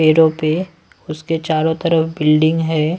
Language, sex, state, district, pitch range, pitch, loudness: Hindi, male, Delhi, New Delhi, 155-165 Hz, 160 Hz, -16 LUFS